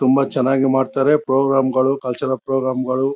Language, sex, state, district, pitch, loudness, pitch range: Kannada, male, Karnataka, Chamarajanagar, 135 Hz, -18 LUFS, 130-135 Hz